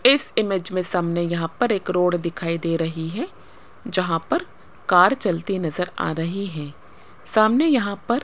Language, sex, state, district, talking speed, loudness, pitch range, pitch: Hindi, female, Rajasthan, Jaipur, 165 wpm, -22 LUFS, 165-215 Hz, 180 Hz